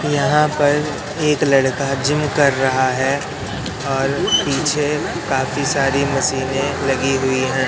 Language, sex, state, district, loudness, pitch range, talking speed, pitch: Hindi, male, Madhya Pradesh, Katni, -18 LUFS, 135-145 Hz, 125 wpm, 135 Hz